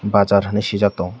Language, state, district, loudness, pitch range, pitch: Kokborok, Tripura, West Tripura, -18 LUFS, 100-105 Hz, 100 Hz